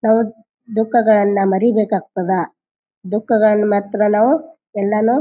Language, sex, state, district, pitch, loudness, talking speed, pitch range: Kannada, female, Karnataka, Bijapur, 215 Hz, -16 LUFS, 90 wpm, 205-230 Hz